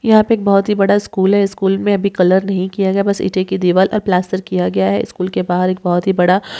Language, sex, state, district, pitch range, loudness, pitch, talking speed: Hindi, female, Rajasthan, Nagaur, 185-200 Hz, -15 LUFS, 190 Hz, 290 wpm